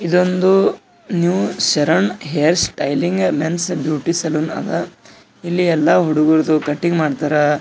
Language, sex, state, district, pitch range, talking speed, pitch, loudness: Kannada, male, Karnataka, Gulbarga, 155-180 Hz, 100 wpm, 165 Hz, -17 LUFS